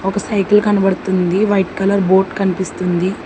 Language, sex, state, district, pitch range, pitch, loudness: Telugu, female, Telangana, Hyderabad, 185-200 Hz, 195 Hz, -15 LUFS